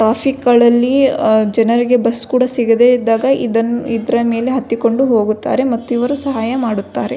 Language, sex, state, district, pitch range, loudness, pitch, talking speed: Kannada, female, Karnataka, Belgaum, 230-255 Hz, -14 LUFS, 240 Hz, 140 wpm